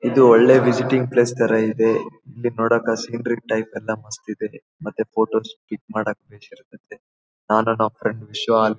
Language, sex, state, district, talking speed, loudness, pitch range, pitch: Kannada, male, Karnataka, Bellary, 165 wpm, -19 LUFS, 110-125 Hz, 115 Hz